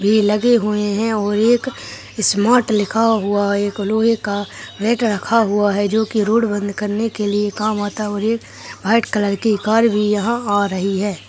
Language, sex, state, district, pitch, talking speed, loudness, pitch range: Hindi, female, Rajasthan, Churu, 210 Hz, 200 wpm, -17 LUFS, 205-225 Hz